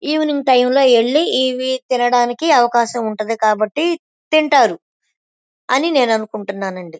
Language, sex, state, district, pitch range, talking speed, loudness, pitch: Telugu, female, Andhra Pradesh, Krishna, 220-290 Hz, 120 wpm, -16 LUFS, 250 Hz